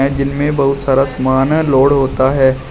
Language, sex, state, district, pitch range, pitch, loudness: Hindi, male, Uttar Pradesh, Shamli, 130-140 Hz, 135 Hz, -13 LUFS